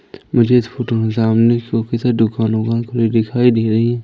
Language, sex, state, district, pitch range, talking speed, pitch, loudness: Hindi, male, Madhya Pradesh, Umaria, 115-120 Hz, 165 wpm, 115 Hz, -16 LUFS